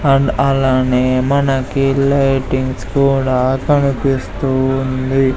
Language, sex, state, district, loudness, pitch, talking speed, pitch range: Telugu, male, Andhra Pradesh, Sri Satya Sai, -15 LUFS, 135 Hz, 80 wpm, 130-135 Hz